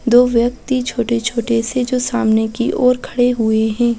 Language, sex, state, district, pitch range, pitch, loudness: Hindi, female, Bihar, Jahanabad, 230-250 Hz, 240 Hz, -16 LUFS